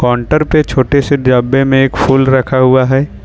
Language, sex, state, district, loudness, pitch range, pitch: Hindi, male, Jharkhand, Ranchi, -11 LUFS, 130-140 Hz, 135 Hz